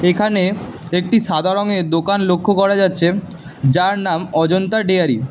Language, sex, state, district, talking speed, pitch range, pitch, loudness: Bengali, male, Karnataka, Bangalore, 145 wpm, 170-200 Hz, 185 Hz, -16 LUFS